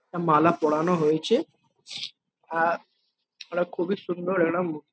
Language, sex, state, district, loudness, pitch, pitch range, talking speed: Bengali, male, West Bengal, Jhargram, -25 LUFS, 175 Hz, 165-190 Hz, 110 wpm